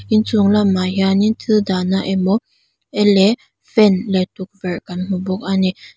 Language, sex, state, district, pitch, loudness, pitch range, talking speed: Mizo, female, Mizoram, Aizawl, 195 Hz, -17 LUFS, 185-210 Hz, 150 wpm